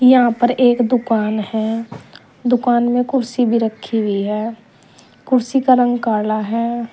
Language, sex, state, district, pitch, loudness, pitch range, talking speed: Hindi, female, Uttar Pradesh, Saharanpur, 235 Hz, -17 LUFS, 220-245 Hz, 145 wpm